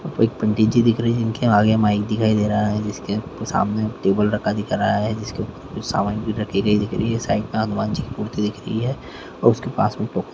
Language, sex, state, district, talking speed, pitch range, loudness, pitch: Hindi, male, Chhattisgarh, Korba, 225 wpm, 105-110 Hz, -21 LUFS, 105 Hz